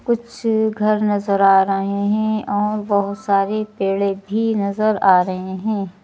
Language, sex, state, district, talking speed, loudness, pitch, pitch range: Hindi, female, Madhya Pradesh, Bhopal, 150 wpm, -18 LUFS, 205 Hz, 195-215 Hz